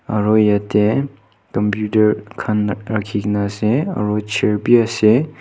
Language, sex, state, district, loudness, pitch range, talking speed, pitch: Nagamese, male, Nagaland, Kohima, -17 LUFS, 105-110 Hz, 120 wpm, 105 Hz